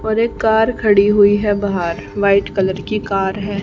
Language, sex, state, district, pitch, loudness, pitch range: Hindi, female, Haryana, Jhajjar, 205 Hz, -16 LUFS, 195-215 Hz